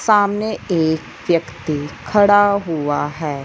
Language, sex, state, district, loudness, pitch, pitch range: Hindi, male, Punjab, Fazilka, -18 LUFS, 165 Hz, 145-205 Hz